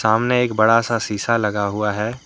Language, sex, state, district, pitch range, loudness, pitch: Hindi, male, Jharkhand, Deoghar, 105-115 Hz, -18 LUFS, 110 Hz